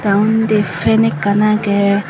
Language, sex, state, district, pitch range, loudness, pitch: Chakma, female, Tripura, Dhalai, 200-215 Hz, -14 LUFS, 205 Hz